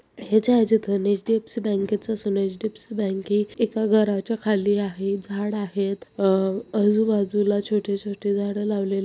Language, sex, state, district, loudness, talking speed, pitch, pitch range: Marathi, female, Maharashtra, Sindhudurg, -23 LUFS, 105 wpm, 205 Hz, 200-215 Hz